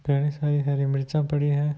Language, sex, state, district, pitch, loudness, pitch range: Hindi, male, Rajasthan, Nagaur, 145 Hz, -25 LUFS, 140-150 Hz